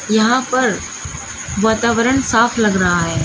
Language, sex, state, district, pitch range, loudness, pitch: Hindi, female, Uttar Pradesh, Shamli, 210-245 Hz, -16 LUFS, 225 Hz